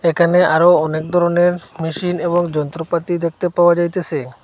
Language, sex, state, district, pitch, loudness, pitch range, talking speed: Bengali, male, Assam, Hailakandi, 170 Hz, -16 LUFS, 160-175 Hz, 135 wpm